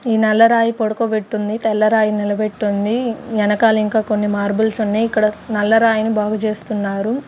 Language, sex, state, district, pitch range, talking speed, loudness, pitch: Telugu, female, Andhra Pradesh, Sri Satya Sai, 210-225 Hz, 140 wpm, -17 LUFS, 215 Hz